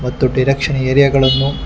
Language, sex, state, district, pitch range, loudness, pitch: Kannada, male, Karnataka, Bangalore, 130-140 Hz, -14 LUFS, 135 Hz